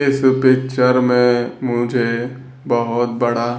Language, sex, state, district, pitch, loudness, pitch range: Hindi, male, Bihar, Kaimur, 125 Hz, -17 LUFS, 120-130 Hz